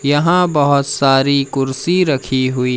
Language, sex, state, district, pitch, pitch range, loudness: Hindi, male, Madhya Pradesh, Umaria, 140 Hz, 135-145 Hz, -15 LUFS